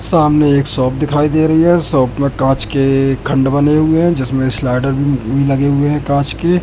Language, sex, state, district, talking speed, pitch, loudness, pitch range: Hindi, male, Madhya Pradesh, Katni, 215 wpm, 140 Hz, -13 LUFS, 135-150 Hz